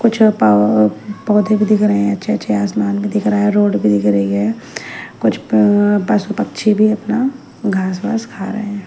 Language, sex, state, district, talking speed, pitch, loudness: Hindi, female, Haryana, Jhajjar, 215 wpm, 195 Hz, -15 LUFS